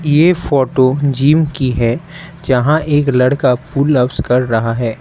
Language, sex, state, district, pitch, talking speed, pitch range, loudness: Hindi, male, Arunachal Pradesh, Lower Dibang Valley, 135 Hz, 155 wpm, 125-150 Hz, -14 LUFS